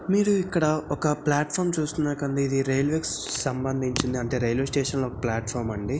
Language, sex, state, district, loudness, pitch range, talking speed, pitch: Telugu, male, Andhra Pradesh, Visakhapatnam, -26 LUFS, 130-155 Hz, 180 wpm, 140 Hz